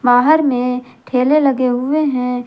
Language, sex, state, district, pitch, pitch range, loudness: Hindi, female, Jharkhand, Garhwa, 255 Hz, 250-285 Hz, -15 LUFS